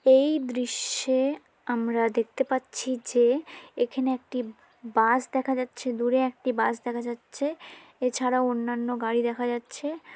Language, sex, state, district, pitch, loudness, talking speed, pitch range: Bengali, female, West Bengal, Dakshin Dinajpur, 250 Hz, -27 LUFS, 130 wpm, 240-265 Hz